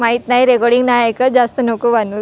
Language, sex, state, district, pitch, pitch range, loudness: Marathi, female, Maharashtra, Gondia, 240 Hz, 235-250 Hz, -13 LUFS